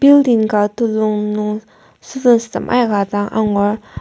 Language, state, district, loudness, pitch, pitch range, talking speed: Ao, Nagaland, Kohima, -16 LUFS, 215 Hz, 205-235 Hz, 135 wpm